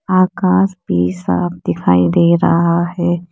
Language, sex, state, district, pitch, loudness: Hindi, female, Uttar Pradesh, Saharanpur, 170 Hz, -14 LUFS